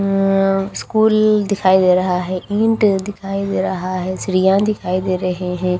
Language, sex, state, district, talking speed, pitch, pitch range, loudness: Hindi, female, Haryana, Rohtak, 165 wpm, 195 Hz, 185-200 Hz, -17 LUFS